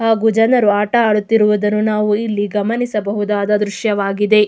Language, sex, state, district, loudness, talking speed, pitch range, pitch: Kannada, female, Karnataka, Mysore, -15 LUFS, 105 wpm, 205-220 Hz, 210 Hz